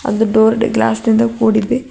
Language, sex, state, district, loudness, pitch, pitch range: Kannada, female, Karnataka, Bidar, -14 LUFS, 225 Hz, 220-235 Hz